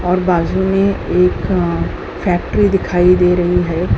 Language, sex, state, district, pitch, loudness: Hindi, female, Uttar Pradesh, Hamirpur, 180 Hz, -15 LUFS